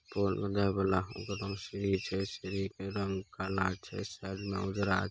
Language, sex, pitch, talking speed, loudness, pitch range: Angika, male, 95 Hz, 175 wpm, -35 LUFS, 95-100 Hz